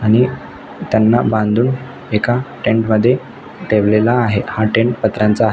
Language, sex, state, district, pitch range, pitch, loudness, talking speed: Marathi, male, Maharashtra, Nagpur, 110-125 Hz, 115 Hz, -15 LUFS, 130 wpm